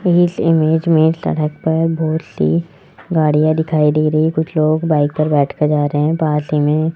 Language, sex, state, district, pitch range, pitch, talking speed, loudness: Hindi, male, Rajasthan, Jaipur, 150-160 Hz, 155 Hz, 190 wpm, -15 LUFS